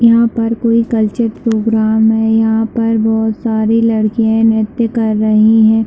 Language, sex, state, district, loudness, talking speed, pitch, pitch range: Hindi, female, Chhattisgarh, Bilaspur, -12 LUFS, 155 wpm, 225 Hz, 220-230 Hz